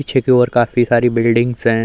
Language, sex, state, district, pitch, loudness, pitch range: Hindi, male, Uttar Pradesh, Muzaffarnagar, 120 Hz, -14 LUFS, 115-125 Hz